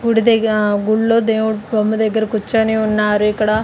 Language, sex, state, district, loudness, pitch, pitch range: Telugu, female, Andhra Pradesh, Sri Satya Sai, -16 LUFS, 220 Hz, 215-225 Hz